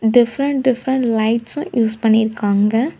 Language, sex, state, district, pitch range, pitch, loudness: Tamil, female, Tamil Nadu, Kanyakumari, 220-260 Hz, 235 Hz, -17 LUFS